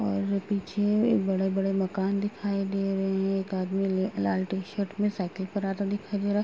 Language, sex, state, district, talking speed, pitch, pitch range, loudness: Hindi, female, Uttar Pradesh, Gorakhpur, 195 wpm, 195 Hz, 190-200 Hz, -28 LUFS